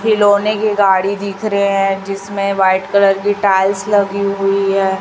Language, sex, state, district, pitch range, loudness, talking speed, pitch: Hindi, female, Chhattisgarh, Raipur, 195-205 Hz, -14 LUFS, 165 wpm, 200 Hz